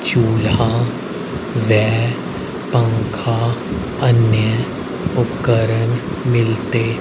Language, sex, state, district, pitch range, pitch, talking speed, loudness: Hindi, male, Haryana, Rohtak, 110-120 Hz, 115 Hz, 50 wpm, -18 LUFS